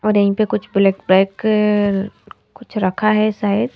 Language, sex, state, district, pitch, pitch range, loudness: Hindi, female, Madhya Pradesh, Bhopal, 210 Hz, 195-215 Hz, -17 LUFS